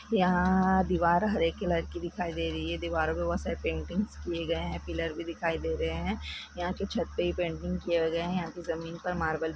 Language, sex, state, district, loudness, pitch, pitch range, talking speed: Hindi, male, Jharkhand, Jamtara, -31 LUFS, 170 Hz, 160-180 Hz, 250 wpm